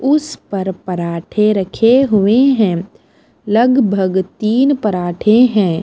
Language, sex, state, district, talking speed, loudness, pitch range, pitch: Hindi, female, Punjab, Pathankot, 105 wpm, -14 LUFS, 190-245 Hz, 210 Hz